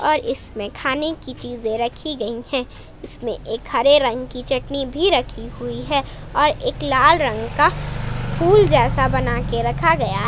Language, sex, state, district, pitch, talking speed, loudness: Hindi, female, Jharkhand, Palamu, 245 Hz, 175 wpm, -19 LUFS